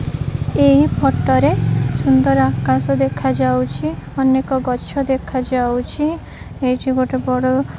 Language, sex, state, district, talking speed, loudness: Odia, female, Odisha, Khordha, 85 wpm, -17 LUFS